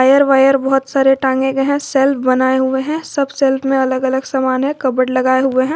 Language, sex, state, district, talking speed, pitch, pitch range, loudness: Hindi, female, Jharkhand, Garhwa, 230 wpm, 270 Hz, 260-275 Hz, -15 LUFS